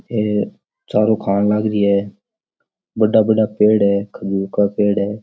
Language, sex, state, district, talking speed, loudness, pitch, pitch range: Rajasthani, male, Rajasthan, Nagaur, 160 wpm, -17 LUFS, 105 Hz, 100-110 Hz